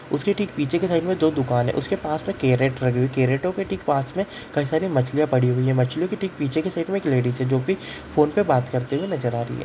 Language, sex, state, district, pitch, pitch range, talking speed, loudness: Hindi, male, Bihar, Darbhanga, 145 Hz, 130-180 Hz, 300 wpm, -23 LUFS